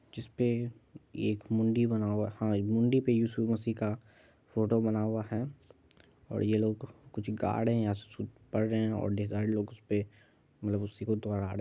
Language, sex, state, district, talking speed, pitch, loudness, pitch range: Hindi, male, Bihar, Madhepura, 165 wpm, 110 Hz, -32 LUFS, 105-115 Hz